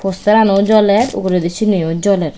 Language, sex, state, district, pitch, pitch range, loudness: Chakma, female, Tripura, West Tripura, 200 Hz, 180-210 Hz, -13 LUFS